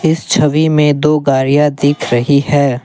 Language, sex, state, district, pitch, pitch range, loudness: Hindi, male, Assam, Kamrup Metropolitan, 145 Hz, 140-150 Hz, -12 LUFS